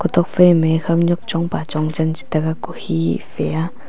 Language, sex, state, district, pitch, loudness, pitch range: Wancho, female, Arunachal Pradesh, Longding, 165 Hz, -18 LUFS, 160-175 Hz